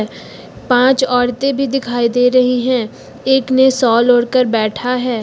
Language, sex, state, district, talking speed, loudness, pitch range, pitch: Hindi, female, Uttar Pradesh, Lucknow, 160 wpm, -14 LUFS, 240-260 Hz, 250 Hz